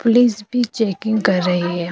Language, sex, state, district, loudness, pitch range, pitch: Hindi, female, Uttar Pradesh, Jyotiba Phule Nagar, -18 LUFS, 180-235 Hz, 215 Hz